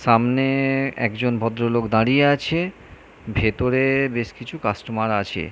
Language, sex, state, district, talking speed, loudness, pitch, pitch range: Bengali, male, West Bengal, North 24 Parganas, 110 wpm, -21 LUFS, 120 Hz, 110-135 Hz